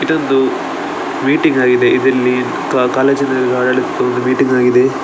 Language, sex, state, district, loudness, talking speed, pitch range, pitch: Kannada, male, Karnataka, Dakshina Kannada, -13 LUFS, 120 wpm, 125-135 Hz, 130 Hz